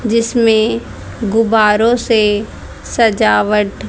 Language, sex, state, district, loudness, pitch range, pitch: Hindi, female, Haryana, Charkhi Dadri, -13 LUFS, 205-230 Hz, 220 Hz